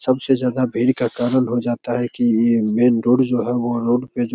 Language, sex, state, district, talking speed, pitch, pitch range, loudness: Hindi, male, Bihar, Begusarai, 260 wpm, 120 Hz, 120-125 Hz, -18 LUFS